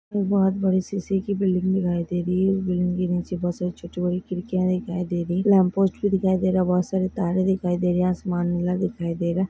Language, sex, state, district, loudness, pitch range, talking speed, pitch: Hindi, female, Maharashtra, Sindhudurg, -23 LUFS, 180-190 Hz, 240 wpm, 185 Hz